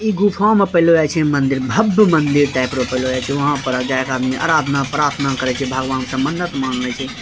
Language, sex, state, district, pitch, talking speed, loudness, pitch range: Maithili, male, Bihar, Bhagalpur, 135 Hz, 190 wpm, -17 LUFS, 130-160 Hz